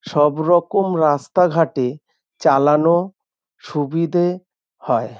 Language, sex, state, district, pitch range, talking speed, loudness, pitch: Bengali, male, West Bengal, North 24 Parganas, 150-175 Hz, 70 wpm, -18 LUFS, 165 Hz